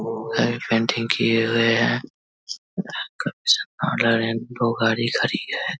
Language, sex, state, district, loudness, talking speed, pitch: Hindi, male, Bihar, Vaishali, -22 LUFS, 85 wpm, 115 Hz